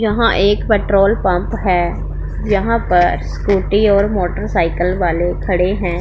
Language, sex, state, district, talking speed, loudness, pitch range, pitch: Hindi, female, Punjab, Pathankot, 130 wpm, -16 LUFS, 175-205 Hz, 190 Hz